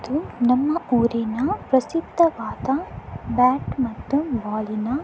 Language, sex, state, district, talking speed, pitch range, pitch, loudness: Kannada, female, Karnataka, Dakshina Kannada, 95 wpm, 235-285 Hz, 255 Hz, -22 LUFS